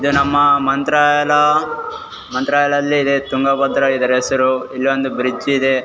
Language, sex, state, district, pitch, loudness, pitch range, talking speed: Kannada, male, Karnataka, Raichur, 140 Hz, -15 LUFS, 135-145 Hz, 105 wpm